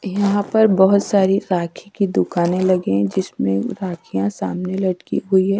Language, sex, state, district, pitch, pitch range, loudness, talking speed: Hindi, female, Bihar, Katihar, 190 Hz, 180-200 Hz, -18 LUFS, 160 wpm